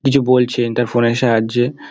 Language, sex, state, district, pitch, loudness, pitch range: Bengali, male, West Bengal, Dakshin Dinajpur, 120 Hz, -16 LUFS, 115-125 Hz